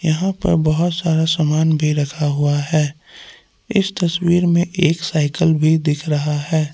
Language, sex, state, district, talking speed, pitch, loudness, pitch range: Hindi, male, Jharkhand, Palamu, 160 wpm, 160 Hz, -17 LUFS, 150-175 Hz